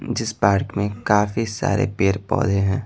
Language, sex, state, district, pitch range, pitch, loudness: Hindi, male, Bihar, Patna, 100-115 Hz, 105 Hz, -21 LUFS